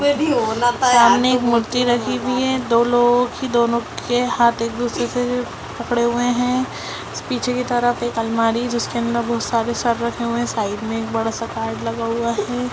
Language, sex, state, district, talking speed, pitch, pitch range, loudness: Hindi, female, Bihar, Muzaffarpur, 220 wpm, 240 Hz, 230-245 Hz, -19 LUFS